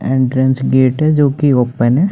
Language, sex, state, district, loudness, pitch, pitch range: Hindi, male, Chandigarh, Chandigarh, -13 LUFS, 130 Hz, 130-145 Hz